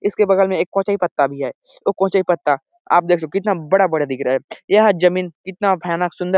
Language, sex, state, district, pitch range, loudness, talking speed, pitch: Hindi, male, Chhattisgarh, Sarguja, 170-195 Hz, -18 LUFS, 245 wpm, 185 Hz